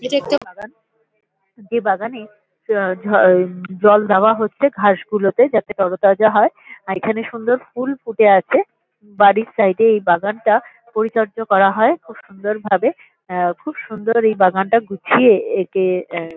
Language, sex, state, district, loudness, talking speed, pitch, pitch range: Bengali, female, West Bengal, Kolkata, -16 LUFS, 145 wpm, 210 Hz, 195-225 Hz